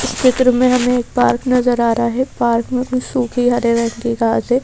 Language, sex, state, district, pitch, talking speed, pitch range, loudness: Hindi, female, Madhya Pradesh, Bhopal, 245 Hz, 230 wpm, 235-250 Hz, -16 LUFS